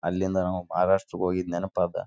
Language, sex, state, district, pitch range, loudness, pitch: Kannada, male, Karnataka, Raichur, 90-95 Hz, -27 LUFS, 90 Hz